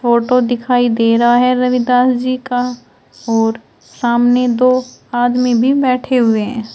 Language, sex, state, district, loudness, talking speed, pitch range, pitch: Hindi, female, Uttar Pradesh, Shamli, -14 LUFS, 140 wpm, 235-250 Hz, 245 Hz